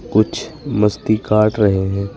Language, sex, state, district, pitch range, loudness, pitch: Hindi, male, Uttar Pradesh, Shamli, 105-110 Hz, -17 LUFS, 105 Hz